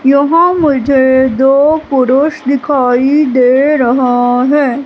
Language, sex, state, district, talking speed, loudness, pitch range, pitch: Hindi, female, Madhya Pradesh, Katni, 100 wpm, -10 LUFS, 255-290 Hz, 270 Hz